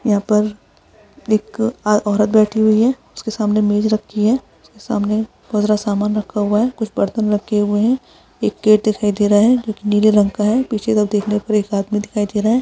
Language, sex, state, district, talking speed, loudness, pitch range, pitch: Hindi, female, Chhattisgarh, Korba, 230 wpm, -17 LUFS, 210-220 Hz, 210 Hz